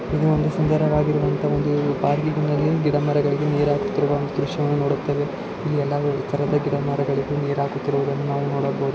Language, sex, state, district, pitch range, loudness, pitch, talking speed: Kannada, male, Karnataka, Shimoga, 140-150 Hz, -22 LUFS, 145 Hz, 120 wpm